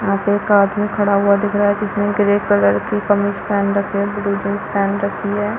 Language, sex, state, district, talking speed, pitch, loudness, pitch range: Hindi, female, Chhattisgarh, Balrampur, 235 wpm, 205 Hz, -17 LUFS, 200-205 Hz